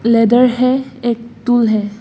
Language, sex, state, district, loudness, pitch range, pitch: Hindi, female, Assam, Hailakandi, -14 LUFS, 225-250 Hz, 235 Hz